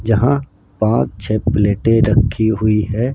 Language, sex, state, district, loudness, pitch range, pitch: Hindi, male, Rajasthan, Jaipur, -16 LUFS, 105-115 Hz, 110 Hz